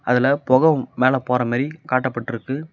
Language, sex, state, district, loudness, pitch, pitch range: Tamil, male, Tamil Nadu, Namakkal, -20 LUFS, 130 Hz, 125-140 Hz